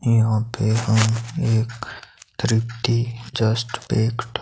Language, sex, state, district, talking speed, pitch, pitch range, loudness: Hindi, male, Himachal Pradesh, Shimla, 95 wpm, 115 Hz, 110-120 Hz, -21 LUFS